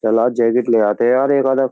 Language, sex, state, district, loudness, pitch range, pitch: Hindi, male, Uttar Pradesh, Jyotiba Phule Nagar, -15 LUFS, 115-135 Hz, 120 Hz